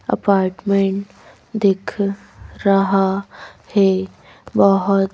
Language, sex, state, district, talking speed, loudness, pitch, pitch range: Hindi, female, Madhya Pradesh, Bhopal, 60 wpm, -18 LUFS, 195 Hz, 195-200 Hz